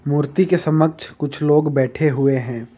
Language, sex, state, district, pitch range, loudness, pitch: Hindi, male, Jharkhand, Ranchi, 135-155 Hz, -18 LUFS, 145 Hz